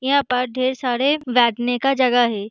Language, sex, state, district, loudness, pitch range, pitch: Hindi, female, Uttar Pradesh, Hamirpur, -19 LUFS, 245-265 Hz, 250 Hz